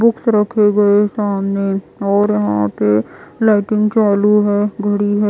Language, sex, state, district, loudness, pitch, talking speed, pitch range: Hindi, female, Bihar, West Champaran, -15 LUFS, 205 Hz, 135 wpm, 200-210 Hz